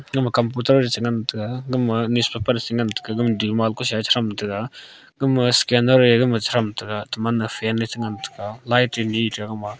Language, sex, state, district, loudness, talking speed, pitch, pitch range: Wancho, male, Arunachal Pradesh, Longding, -21 LUFS, 185 wpm, 115 Hz, 110-125 Hz